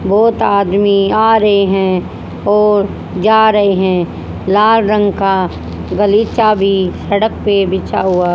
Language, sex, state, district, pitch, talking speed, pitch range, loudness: Hindi, female, Haryana, Charkhi Dadri, 200 Hz, 130 wpm, 195-215 Hz, -12 LUFS